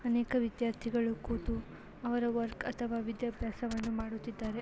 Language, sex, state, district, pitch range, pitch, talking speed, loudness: Kannada, female, Karnataka, Belgaum, 225-240 Hz, 230 Hz, 105 wpm, -36 LUFS